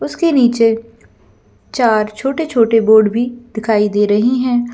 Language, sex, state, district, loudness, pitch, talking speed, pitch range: Hindi, female, Chhattisgarh, Bilaspur, -14 LUFS, 230 Hz, 125 wpm, 220-250 Hz